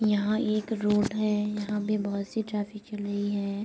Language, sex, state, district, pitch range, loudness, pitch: Hindi, female, Uttar Pradesh, Budaun, 205-215 Hz, -29 LUFS, 210 Hz